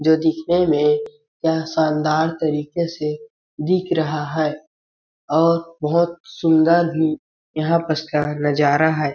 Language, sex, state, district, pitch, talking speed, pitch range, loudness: Hindi, male, Chhattisgarh, Balrampur, 160 Hz, 125 wpm, 150-170 Hz, -19 LUFS